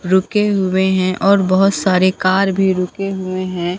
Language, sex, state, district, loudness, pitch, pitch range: Hindi, female, Bihar, Katihar, -15 LUFS, 190 Hz, 185-195 Hz